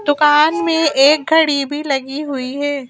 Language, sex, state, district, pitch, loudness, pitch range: Hindi, female, Madhya Pradesh, Bhopal, 290 Hz, -15 LUFS, 275-310 Hz